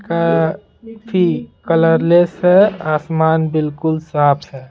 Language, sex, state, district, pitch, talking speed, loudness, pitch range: Hindi, male, Bihar, Patna, 160 Hz, 90 wpm, -15 LUFS, 155-175 Hz